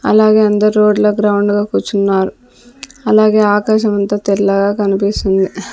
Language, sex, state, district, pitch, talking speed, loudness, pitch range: Telugu, female, Andhra Pradesh, Sri Satya Sai, 205 Hz, 95 wpm, -13 LUFS, 200-215 Hz